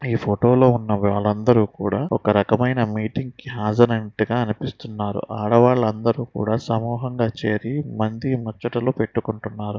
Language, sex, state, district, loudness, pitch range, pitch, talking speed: Telugu, male, Andhra Pradesh, Visakhapatnam, -21 LUFS, 105-120 Hz, 110 Hz, 115 wpm